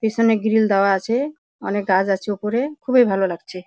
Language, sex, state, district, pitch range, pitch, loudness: Bengali, female, West Bengal, Jalpaiguri, 195-240 Hz, 220 Hz, -19 LUFS